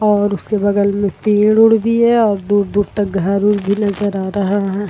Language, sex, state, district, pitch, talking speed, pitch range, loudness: Hindi, female, Uttar Pradesh, Varanasi, 205 Hz, 220 wpm, 200-210 Hz, -15 LUFS